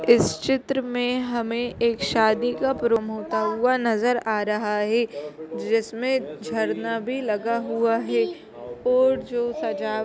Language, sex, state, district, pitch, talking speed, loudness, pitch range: Hindi, female, Chhattisgarh, Kabirdham, 230 Hz, 135 wpm, -24 LUFS, 215-245 Hz